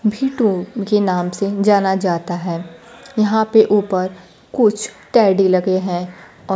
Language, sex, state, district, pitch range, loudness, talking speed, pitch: Hindi, female, Bihar, Kaimur, 185-215 Hz, -17 LUFS, 135 wpm, 200 Hz